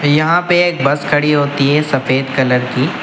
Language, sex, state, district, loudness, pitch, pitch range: Hindi, male, Uttar Pradesh, Lucknow, -14 LUFS, 145 Hz, 135-150 Hz